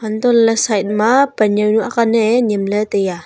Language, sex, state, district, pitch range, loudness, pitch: Wancho, female, Arunachal Pradesh, Longding, 210-230 Hz, -14 LUFS, 220 Hz